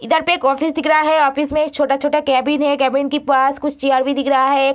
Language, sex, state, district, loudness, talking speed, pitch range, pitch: Hindi, female, Bihar, Begusarai, -16 LUFS, 265 wpm, 270-300 Hz, 280 Hz